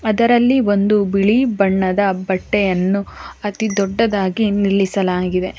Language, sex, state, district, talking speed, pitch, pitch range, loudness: Kannada, female, Karnataka, Bangalore, 85 wpm, 200 Hz, 190-215 Hz, -17 LUFS